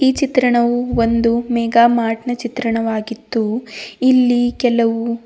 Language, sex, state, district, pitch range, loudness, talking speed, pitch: Kannada, female, Karnataka, Bidar, 230-245 Hz, -16 LUFS, 80 wpm, 235 Hz